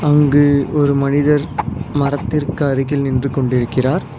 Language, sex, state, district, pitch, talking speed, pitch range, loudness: Tamil, male, Tamil Nadu, Nilgiris, 140 Hz, 100 wpm, 135-145 Hz, -16 LUFS